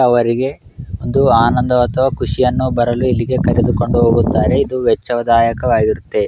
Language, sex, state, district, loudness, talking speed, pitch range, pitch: Kannada, male, Karnataka, Raichur, -14 LUFS, 125 wpm, 115-130 Hz, 125 Hz